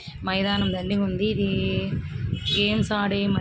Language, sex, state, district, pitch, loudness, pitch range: Telugu, female, Andhra Pradesh, Srikakulam, 200 Hz, -24 LUFS, 185-200 Hz